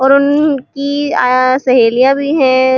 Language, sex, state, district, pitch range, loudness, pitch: Hindi, female, Uttar Pradesh, Muzaffarnagar, 255-280 Hz, -11 LUFS, 270 Hz